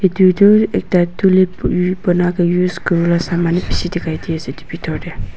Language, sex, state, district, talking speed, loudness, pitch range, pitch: Nagamese, female, Nagaland, Dimapur, 155 wpm, -15 LUFS, 170-185 Hz, 175 Hz